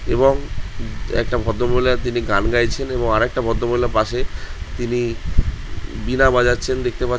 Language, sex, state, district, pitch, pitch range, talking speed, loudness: Bengali, male, West Bengal, Jhargram, 120 Hz, 110-125 Hz, 135 wpm, -20 LUFS